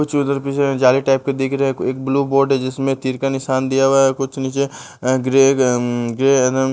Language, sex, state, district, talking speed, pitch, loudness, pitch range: Hindi, male, Bihar, West Champaran, 215 wpm, 135 Hz, -17 LUFS, 130-135 Hz